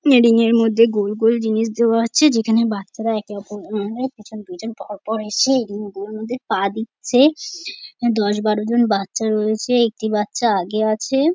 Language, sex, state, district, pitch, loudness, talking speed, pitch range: Bengali, female, West Bengal, North 24 Parganas, 220 Hz, -18 LUFS, 150 wpm, 210-235 Hz